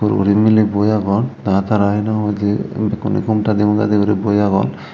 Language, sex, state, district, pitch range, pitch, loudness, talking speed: Chakma, male, Tripura, Dhalai, 100-110 Hz, 105 Hz, -16 LUFS, 205 wpm